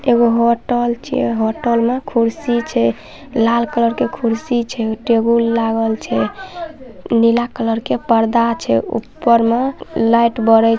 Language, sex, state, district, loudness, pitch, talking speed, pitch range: Maithili, male, Bihar, Saharsa, -16 LUFS, 235 Hz, 115 wpm, 230-245 Hz